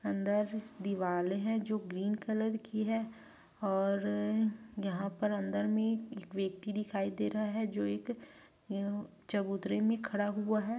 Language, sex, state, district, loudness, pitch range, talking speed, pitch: Hindi, female, Chhattisgarh, Raigarh, -35 LUFS, 195-220 Hz, 145 wpm, 210 Hz